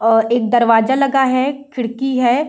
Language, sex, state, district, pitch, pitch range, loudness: Hindi, female, Bihar, Saran, 250 Hz, 235-270 Hz, -15 LUFS